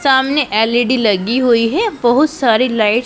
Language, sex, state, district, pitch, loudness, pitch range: Hindi, female, Punjab, Pathankot, 245 Hz, -14 LUFS, 225-265 Hz